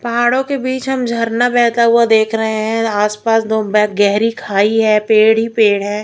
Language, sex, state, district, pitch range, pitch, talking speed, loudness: Hindi, female, Chhattisgarh, Raipur, 215-235 Hz, 225 Hz, 200 wpm, -14 LUFS